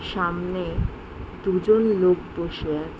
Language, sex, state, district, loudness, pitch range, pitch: Bengali, female, West Bengal, Jhargram, -24 LUFS, 115-185 Hz, 175 Hz